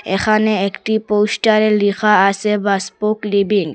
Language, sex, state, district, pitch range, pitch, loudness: Bengali, female, Assam, Hailakandi, 200-215 Hz, 210 Hz, -15 LUFS